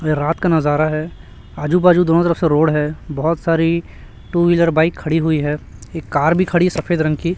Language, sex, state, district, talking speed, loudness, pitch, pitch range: Hindi, male, Chhattisgarh, Raipur, 230 wpm, -17 LUFS, 165 Hz, 155-170 Hz